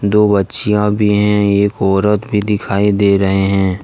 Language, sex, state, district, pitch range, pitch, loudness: Hindi, male, Jharkhand, Deoghar, 100-105 Hz, 100 Hz, -14 LUFS